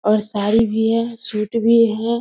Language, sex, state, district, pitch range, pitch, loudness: Hindi, female, Bihar, Samastipur, 215-230 Hz, 225 Hz, -18 LUFS